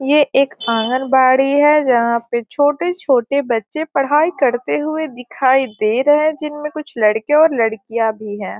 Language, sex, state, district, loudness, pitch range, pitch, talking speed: Hindi, female, Bihar, Gopalganj, -16 LUFS, 230-295 Hz, 265 Hz, 155 wpm